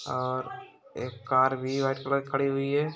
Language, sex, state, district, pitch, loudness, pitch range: Hindi, male, Bihar, Gopalganj, 135 Hz, -28 LUFS, 130-140 Hz